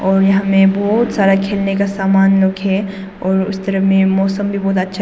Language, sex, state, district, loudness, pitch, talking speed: Hindi, female, Arunachal Pradesh, Papum Pare, -14 LUFS, 195 Hz, 225 wpm